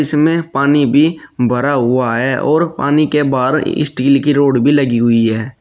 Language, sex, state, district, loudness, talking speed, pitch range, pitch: Hindi, male, Uttar Pradesh, Shamli, -13 LUFS, 180 wpm, 125-150 Hz, 140 Hz